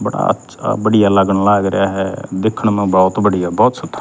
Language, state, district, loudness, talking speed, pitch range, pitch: Haryanvi, Haryana, Rohtak, -15 LUFS, 195 wpm, 95-105 Hz, 100 Hz